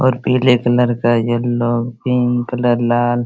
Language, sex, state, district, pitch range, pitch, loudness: Hindi, male, Bihar, Araria, 120-125 Hz, 120 Hz, -16 LUFS